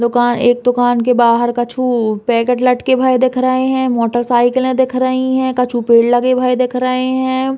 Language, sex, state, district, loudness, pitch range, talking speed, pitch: Bundeli, female, Uttar Pradesh, Hamirpur, -14 LUFS, 240-255 Hz, 180 wpm, 250 Hz